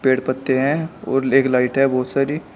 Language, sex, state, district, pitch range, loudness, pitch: Hindi, male, Uttar Pradesh, Shamli, 130-140 Hz, -19 LUFS, 135 Hz